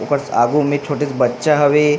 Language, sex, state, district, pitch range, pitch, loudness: Chhattisgarhi, male, Chhattisgarh, Rajnandgaon, 140-150 Hz, 145 Hz, -16 LUFS